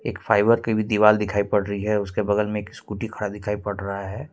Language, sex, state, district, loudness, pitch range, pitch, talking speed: Hindi, male, Jharkhand, Ranchi, -23 LUFS, 100-110 Hz, 105 Hz, 260 wpm